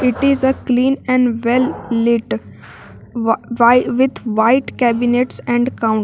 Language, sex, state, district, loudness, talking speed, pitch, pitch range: English, female, Jharkhand, Garhwa, -16 LUFS, 140 wpm, 240 Hz, 230-255 Hz